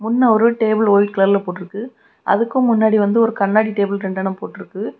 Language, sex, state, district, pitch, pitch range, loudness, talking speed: Tamil, female, Tamil Nadu, Kanyakumari, 215 Hz, 200-230 Hz, -16 LUFS, 180 wpm